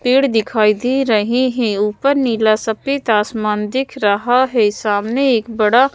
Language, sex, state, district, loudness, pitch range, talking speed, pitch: Hindi, female, Madhya Pradesh, Bhopal, -16 LUFS, 215-260 Hz, 150 wpm, 230 Hz